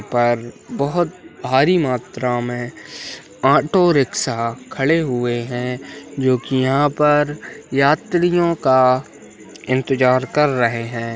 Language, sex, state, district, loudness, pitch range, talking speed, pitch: Hindi, male, Uttarakhand, Uttarkashi, -18 LUFS, 120-150 Hz, 115 wpm, 130 Hz